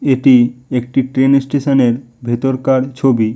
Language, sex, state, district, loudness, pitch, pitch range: Bengali, male, West Bengal, Malda, -14 LUFS, 130 Hz, 125-135 Hz